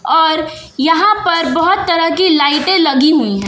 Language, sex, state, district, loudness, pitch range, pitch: Hindi, female, Bihar, West Champaran, -12 LUFS, 300-355 Hz, 325 Hz